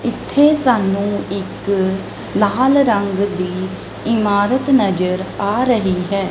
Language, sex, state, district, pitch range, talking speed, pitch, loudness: Punjabi, female, Punjab, Kapurthala, 190-245 Hz, 105 wpm, 200 Hz, -17 LUFS